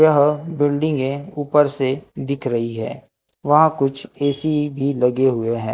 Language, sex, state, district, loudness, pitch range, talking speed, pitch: Hindi, male, Maharashtra, Gondia, -19 LUFS, 130-150 Hz, 145 wpm, 140 Hz